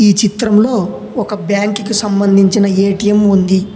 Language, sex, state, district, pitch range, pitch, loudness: Telugu, male, Telangana, Hyderabad, 195-210 Hz, 205 Hz, -12 LUFS